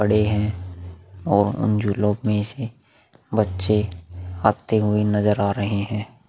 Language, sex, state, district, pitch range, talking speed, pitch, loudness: Hindi, male, Uttar Pradesh, Muzaffarnagar, 100-105 Hz, 125 wpm, 105 Hz, -22 LUFS